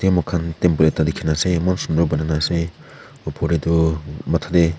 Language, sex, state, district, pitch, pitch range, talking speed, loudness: Nagamese, male, Nagaland, Kohima, 85 Hz, 80-85 Hz, 190 wpm, -20 LUFS